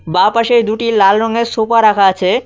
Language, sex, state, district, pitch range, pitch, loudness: Bengali, male, West Bengal, Cooch Behar, 195-230 Hz, 220 Hz, -12 LUFS